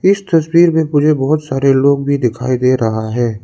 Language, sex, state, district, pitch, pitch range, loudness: Hindi, male, Arunachal Pradesh, Lower Dibang Valley, 140 Hz, 125-155 Hz, -13 LUFS